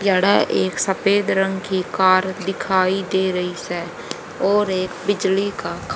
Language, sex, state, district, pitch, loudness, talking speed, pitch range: Hindi, female, Haryana, Rohtak, 190 Hz, -20 LUFS, 150 wpm, 185-195 Hz